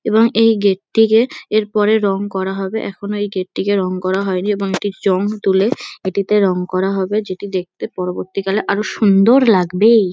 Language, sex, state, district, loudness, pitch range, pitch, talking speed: Bengali, female, West Bengal, Kolkata, -16 LUFS, 190-215 Hz, 200 Hz, 180 wpm